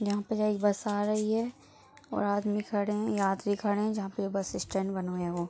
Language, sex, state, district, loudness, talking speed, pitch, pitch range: Hindi, female, Bihar, East Champaran, -31 LUFS, 250 wpm, 205 Hz, 195-210 Hz